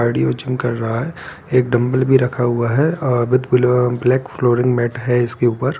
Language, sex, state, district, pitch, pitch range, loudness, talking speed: Hindi, male, Bihar, Gopalganj, 125 Hz, 120-130 Hz, -17 LUFS, 195 wpm